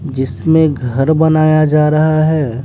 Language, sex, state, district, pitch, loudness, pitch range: Hindi, male, Bihar, West Champaran, 155 Hz, -12 LUFS, 135-155 Hz